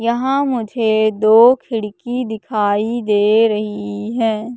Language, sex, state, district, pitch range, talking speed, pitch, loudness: Hindi, female, Madhya Pradesh, Katni, 210-235 Hz, 105 wpm, 220 Hz, -16 LUFS